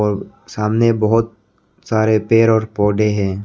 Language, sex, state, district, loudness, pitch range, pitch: Hindi, male, Arunachal Pradesh, Lower Dibang Valley, -16 LUFS, 105-115 Hz, 110 Hz